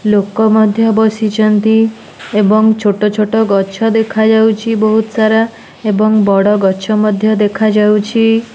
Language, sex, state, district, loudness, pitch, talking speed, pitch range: Odia, female, Odisha, Nuapada, -11 LUFS, 215 Hz, 90 wpm, 210-220 Hz